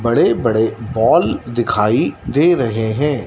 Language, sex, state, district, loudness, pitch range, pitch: Hindi, male, Madhya Pradesh, Dhar, -16 LUFS, 110-120 Hz, 115 Hz